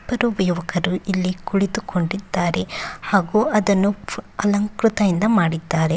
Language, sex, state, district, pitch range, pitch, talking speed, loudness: Kannada, female, Karnataka, Bellary, 180-210 Hz, 195 Hz, 80 wpm, -20 LUFS